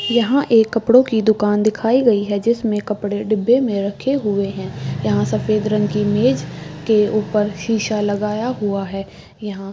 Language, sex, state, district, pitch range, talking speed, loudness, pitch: Hindi, female, Chhattisgarh, Bastar, 205-225 Hz, 175 wpm, -18 LUFS, 210 Hz